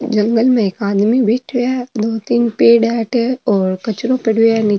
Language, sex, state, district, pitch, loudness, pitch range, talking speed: Marwari, female, Rajasthan, Nagaur, 230 Hz, -15 LUFS, 215-245 Hz, 210 wpm